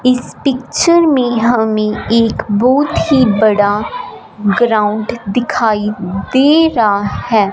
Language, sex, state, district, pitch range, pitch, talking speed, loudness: Hindi, female, Punjab, Fazilka, 210-260 Hz, 230 Hz, 105 wpm, -13 LUFS